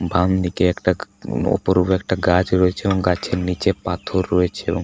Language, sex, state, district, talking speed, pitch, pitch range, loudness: Bengali, male, West Bengal, Paschim Medinipur, 150 wpm, 90 Hz, 90-95 Hz, -20 LUFS